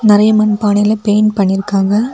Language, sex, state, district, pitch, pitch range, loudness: Tamil, female, Tamil Nadu, Kanyakumari, 210 Hz, 205-215 Hz, -12 LUFS